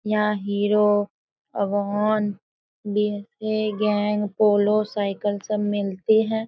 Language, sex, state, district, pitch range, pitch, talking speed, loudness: Hindi, female, Bihar, Sitamarhi, 205-215 Hz, 210 Hz, 85 wpm, -23 LUFS